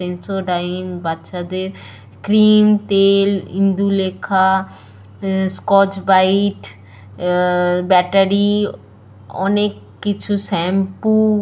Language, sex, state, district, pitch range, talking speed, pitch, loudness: Bengali, female, West Bengal, Purulia, 180-200 Hz, 75 wpm, 190 Hz, -16 LUFS